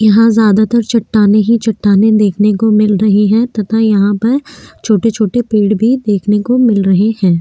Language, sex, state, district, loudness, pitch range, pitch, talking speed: Hindi, female, Maharashtra, Aurangabad, -11 LUFS, 205-225 Hz, 215 Hz, 185 wpm